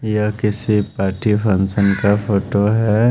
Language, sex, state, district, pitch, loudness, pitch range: Hindi, male, Haryana, Jhajjar, 105 Hz, -17 LUFS, 100-110 Hz